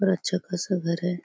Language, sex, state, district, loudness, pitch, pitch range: Hindi, female, Chhattisgarh, Bastar, -27 LUFS, 180 Hz, 175-185 Hz